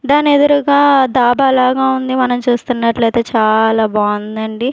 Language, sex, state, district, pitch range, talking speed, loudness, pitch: Telugu, female, Andhra Pradesh, Sri Satya Sai, 225-265 Hz, 100 wpm, -13 LUFS, 250 Hz